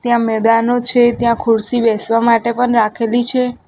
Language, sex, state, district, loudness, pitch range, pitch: Gujarati, female, Gujarat, Gandhinagar, -14 LUFS, 230-240 Hz, 235 Hz